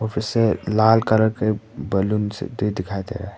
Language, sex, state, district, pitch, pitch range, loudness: Hindi, male, Arunachal Pradesh, Papum Pare, 110 Hz, 100-110 Hz, -21 LUFS